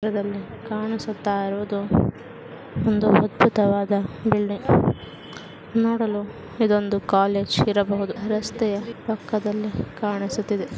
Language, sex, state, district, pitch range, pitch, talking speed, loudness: Kannada, female, Karnataka, Mysore, 200-215 Hz, 210 Hz, 65 wpm, -23 LUFS